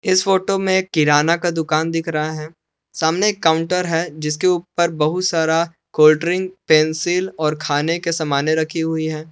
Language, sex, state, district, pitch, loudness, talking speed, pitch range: Hindi, male, Jharkhand, Palamu, 165 Hz, -18 LUFS, 175 wpm, 155-180 Hz